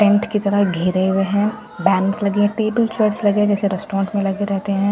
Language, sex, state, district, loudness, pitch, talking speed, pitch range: Hindi, female, Bihar, Katihar, -18 LUFS, 200 Hz, 245 wpm, 195-210 Hz